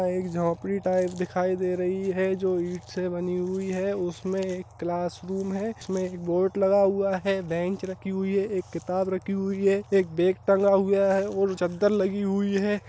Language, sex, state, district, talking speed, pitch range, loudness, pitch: Hindi, male, Bihar, Saharsa, 200 wpm, 180-195 Hz, -26 LUFS, 190 Hz